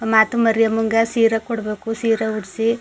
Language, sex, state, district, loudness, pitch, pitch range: Kannada, female, Karnataka, Mysore, -19 LUFS, 225 Hz, 220-225 Hz